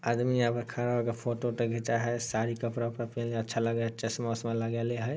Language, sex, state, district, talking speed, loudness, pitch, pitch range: Maithili, male, Bihar, Samastipur, 210 wpm, -31 LUFS, 115 Hz, 115-120 Hz